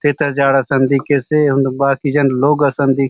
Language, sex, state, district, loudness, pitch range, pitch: Halbi, male, Chhattisgarh, Bastar, -14 LUFS, 135-145 Hz, 140 Hz